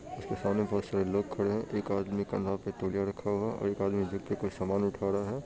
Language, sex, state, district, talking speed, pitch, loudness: Hindi, male, Bihar, Purnia, 275 wpm, 100 Hz, -32 LUFS